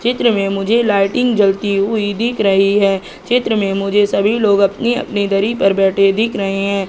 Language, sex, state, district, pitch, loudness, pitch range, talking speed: Hindi, female, Madhya Pradesh, Katni, 200 Hz, -15 LUFS, 195-225 Hz, 190 wpm